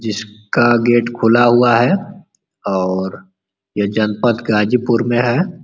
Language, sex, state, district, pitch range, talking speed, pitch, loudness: Hindi, male, Uttar Pradesh, Ghazipur, 105-120 Hz, 115 wpm, 120 Hz, -15 LUFS